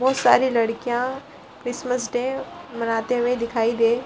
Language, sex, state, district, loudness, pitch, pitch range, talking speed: Hindi, female, Bihar, Gaya, -22 LUFS, 245 Hz, 235-255 Hz, 150 wpm